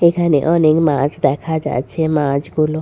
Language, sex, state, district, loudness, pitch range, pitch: Bengali, female, West Bengal, Purulia, -16 LUFS, 140-160 Hz, 155 Hz